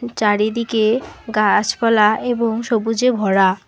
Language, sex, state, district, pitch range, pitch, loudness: Bengali, female, West Bengal, Alipurduar, 210-235 Hz, 225 Hz, -17 LUFS